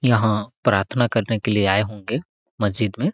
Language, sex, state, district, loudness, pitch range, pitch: Hindi, male, Chhattisgarh, Sarguja, -21 LUFS, 105-120 Hz, 110 Hz